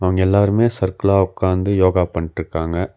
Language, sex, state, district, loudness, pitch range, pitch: Tamil, male, Tamil Nadu, Nilgiris, -18 LUFS, 90-100 Hz, 95 Hz